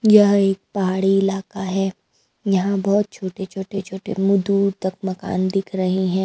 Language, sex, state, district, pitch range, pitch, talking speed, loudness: Hindi, female, Maharashtra, Mumbai Suburban, 190-200 Hz, 195 Hz, 165 wpm, -20 LUFS